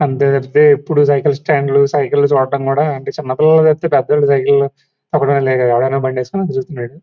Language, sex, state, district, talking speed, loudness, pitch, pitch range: Telugu, male, Andhra Pradesh, Guntur, 155 wpm, -14 LUFS, 140 Hz, 135-150 Hz